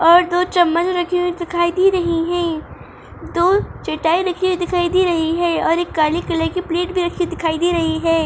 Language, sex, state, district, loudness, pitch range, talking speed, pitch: Hindi, female, Uttar Pradesh, Etah, -18 LUFS, 330-360 Hz, 210 wpm, 345 Hz